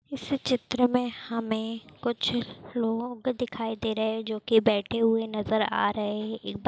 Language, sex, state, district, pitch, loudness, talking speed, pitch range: Hindi, female, Maharashtra, Dhule, 225 Hz, -28 LUFS, 170 wpm, 220-240 Hz